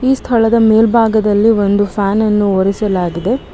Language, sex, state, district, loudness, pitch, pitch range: Kannada, female, Karnataka, Bangalore, -12 LUFS, 215 Hz, 200-225 Hz